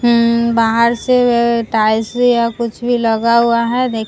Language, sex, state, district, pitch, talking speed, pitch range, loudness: Hindi, female, Bihar, Vaishali, 235 Hz, 175 wpm, 230-240 Hz, -14 LUFS